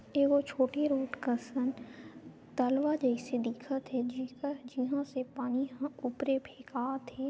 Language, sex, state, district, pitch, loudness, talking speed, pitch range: Chhattisgarhi, female, Chhattisgarh, Sarguja, 260 Hz, -34 LUFS, 140 wpm, 250-275 Hz